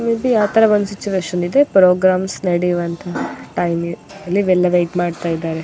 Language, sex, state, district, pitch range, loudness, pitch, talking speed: Kannada, female, Karnataka, Dakshina Kannada, 175-200 Hz, -17 LUFS, 180 Hz, 160 wpm